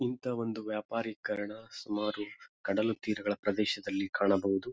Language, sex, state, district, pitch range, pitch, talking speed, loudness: Kannada, male, Karnataka, Bijapur, 105-115 Hz, 105 Hz, 100 wpm, -34 LUFS